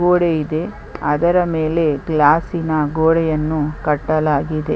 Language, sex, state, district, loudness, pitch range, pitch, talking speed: Kannada, female, Karnataka, Chamarajanagar, -17 LUFS, 150-165 Hz, 155 Hz, 100 wpm